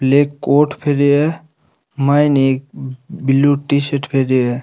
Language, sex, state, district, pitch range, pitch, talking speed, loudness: Rajasthani, male, Rajasthan, Nagaur, 135-145 Hz, 140 Hz, 145 wpm, -15 LUFS